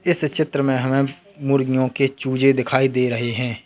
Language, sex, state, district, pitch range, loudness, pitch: Hindi, male, Uttar Pradesh, Lalitpur, 130-140 Hz, -20 LUFS, 135 Hz